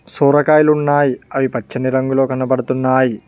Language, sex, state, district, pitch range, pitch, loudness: Telugu, male, Telangana, Mahabubabad, 130-145 Hz, 130 Hz, -15 LUFS